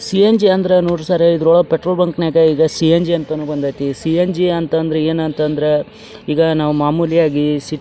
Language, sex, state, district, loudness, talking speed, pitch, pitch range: Kannada, male, Karnataka, Dharwad, -15 LUFS, 160 wpm, 165 Hz, 155-175 Hz